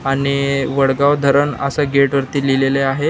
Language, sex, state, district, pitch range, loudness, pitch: Marathi, male, Maharashtra, Nagpur, 135-140 Hz, -16 LUFS, 140 Hz